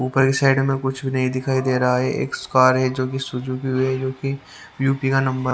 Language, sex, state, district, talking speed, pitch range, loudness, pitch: Hindi, male, Haryana, Rohtak, 260 wpm, 130-135 Hz, -20 LUFS, 130 Hz